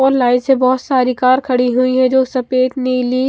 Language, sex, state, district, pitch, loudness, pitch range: Hindi, female, Chandigarh, Chandigarh, 255 Hz, -14 LUFS, 250-260 Hz